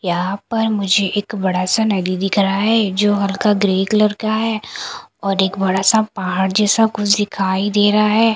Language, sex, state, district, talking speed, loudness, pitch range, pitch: Hindi, female, Punjab, Kapurthala, 195 wpm, -17 LUFS, 195-215 Hz, 205 Hz